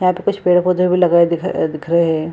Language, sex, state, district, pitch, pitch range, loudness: Hindi, female, Bihar, Purnia, 180 Hz, 170-180 Hz, -15 LUFS